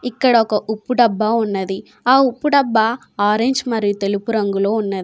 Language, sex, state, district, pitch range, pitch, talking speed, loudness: Telugu, female, Telangana, Komaram Bheem, 205-245 Hz, 220 Hz, 155 wpm, -17 LUFS